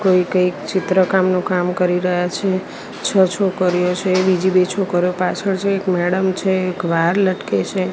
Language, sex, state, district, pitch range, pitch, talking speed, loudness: Gujarati, female, Gujarat, Gandhinagar, 180-190 Hz, 185 Hz, 165 wpm, -18 LUFS